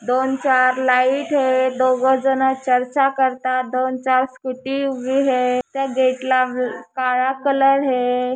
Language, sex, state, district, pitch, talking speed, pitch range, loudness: Marathi, female, Maharashtra, Chandrapur, 260 Hz, 135 wpm, 255-265 Hz, -18 LUFS